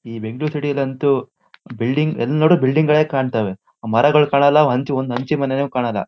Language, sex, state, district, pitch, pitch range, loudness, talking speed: Kannada, male, Karnataka, Shimoga, 135 Hz, 120-150 Hz, -18 LUFS, 175 wpm